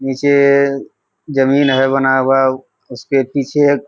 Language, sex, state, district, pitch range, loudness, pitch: Hindi, male, Bihar, Purnia, 135-140 Hz, -14 LUFS, 135 Hz